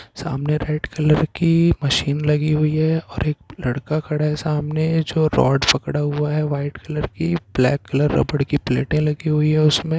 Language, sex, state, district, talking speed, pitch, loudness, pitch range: Hindi, male, Bihar, Jahanabad, 185 wpm, 150 Hz, -20 LUFS, 140-155 Hz